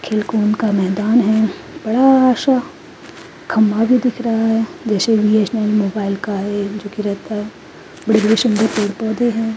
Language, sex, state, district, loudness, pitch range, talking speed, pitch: Hindi, female, Uttarakhand, Tehri Garhwal, -16 LUFS, 210-230 Hz, 155 wpm, 220 Hz